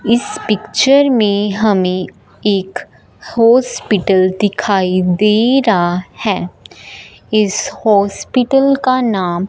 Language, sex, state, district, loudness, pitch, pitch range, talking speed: Hindi, female, Punjab, Fazilka, -14 LUFS, 210 Hz, 190-240 Hz, 90 wpm